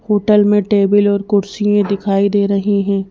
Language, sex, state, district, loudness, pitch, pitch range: Hindi, female, Madhya Pradesh, Bhopal, -14 LUFS, 205 Hz, 200-205 Hz